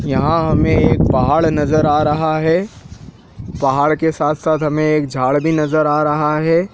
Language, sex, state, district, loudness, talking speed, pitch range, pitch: Hindi, male, Madhya Pradesh, Dhar, -15 LUFS, 170 wpm, 150-160 Hz, 155 Hz